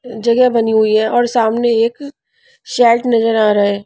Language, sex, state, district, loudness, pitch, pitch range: Hindi, female, Punjab, Pathankot, -13 LUFS, 235 Hz, 220-250 Hz